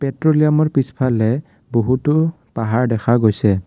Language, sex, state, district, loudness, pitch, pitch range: Assamese, male, Assam, Kamrup Metropolitan, -17 LUFS, 130 Hz, 115-150 Hz